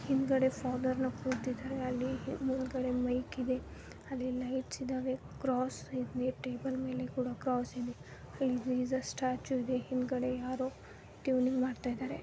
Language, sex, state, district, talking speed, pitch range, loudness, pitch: Kannada, female, Karnataka, Bijapur, 130 wpm, 255-260 Hz, -36 LUFS, 255 Hz